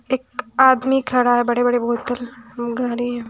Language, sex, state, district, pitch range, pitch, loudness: Hindi, female, Bihar, West Champaran, 240-255 Hz, 245 Hz, -19 LUFS